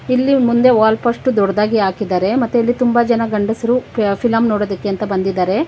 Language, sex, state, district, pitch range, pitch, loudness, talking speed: Kannada, female, Karnataka, Bangalore, 205-240 Hz, 225 Hz, -15 LUFS, 160 wpm